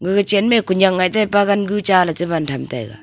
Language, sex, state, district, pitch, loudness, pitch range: Wancho, female, Arunachal Pradesh, Longding, 190 Hz, -16 LUFS, 175-205 Hz